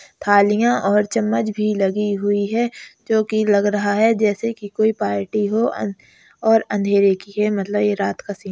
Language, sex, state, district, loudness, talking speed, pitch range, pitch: Hindi, female, Uttar Pradesh, Hamirpur, -19 LUFS, 190 wpm, 205-220 Hz, 210 Hz